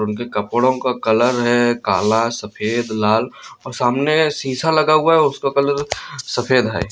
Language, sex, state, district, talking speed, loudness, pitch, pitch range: Hindi, male, Chhattisgarh, Bilaspur, 155 wpm, -17 LUFS, 125 Hz, 110-140 Hz